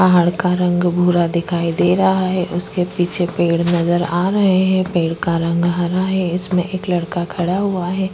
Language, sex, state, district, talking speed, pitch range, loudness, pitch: Hindi, female, Chhattisgarh, Korba, 190 wpm, 175-185 Hz, -17 LUFS, 175 Hz